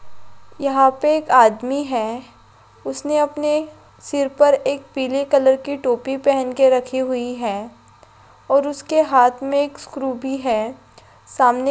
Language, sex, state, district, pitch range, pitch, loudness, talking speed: Hindi, female, Rajasthan, Nagaur, 250-285 Hz, 270 Hz, -19 LUFS, 150 wpm